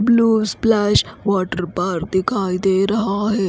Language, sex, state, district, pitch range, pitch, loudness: Hindi, female, Odisha, Khordha, 185-220 Hz, 200 Hz, -18 LUFS